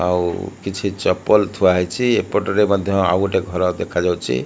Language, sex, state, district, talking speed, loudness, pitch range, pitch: Odia, male, Odisha, Malkangiri, 135 wpm, -18 LUFS, 90-100 Hz, 95 Hz